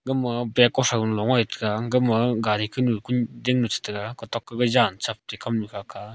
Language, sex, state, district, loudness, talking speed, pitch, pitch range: Wancho, male, Arunachal Pradesh, Longding, -23 LUFS, 215 wpm, 120 Hz, 110-125 Hz